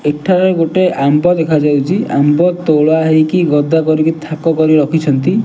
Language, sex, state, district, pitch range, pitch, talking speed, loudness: Odia, male, Odisha, Nuapada, 150-175 Hz, 160 Hz, 145 wpm, -12 LUFS